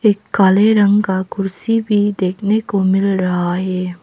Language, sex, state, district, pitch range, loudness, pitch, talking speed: Hindi, female, Arunachal Pradesh, Papum Pare, 185-205 Hz, -16 LUFS, 195 Hz, 165 wpm